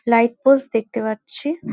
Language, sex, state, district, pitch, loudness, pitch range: Bengali, female, West Bengal, North 24 Parganas, 235 Hz, -19 LUFS, 225-275 Hz